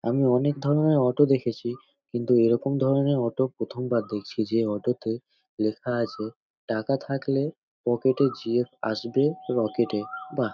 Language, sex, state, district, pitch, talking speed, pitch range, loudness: Bengali, male, West Bengal, North 24 Parganas, 125 Hz, 160 wpm, 115-135 Hz, -26 LUFS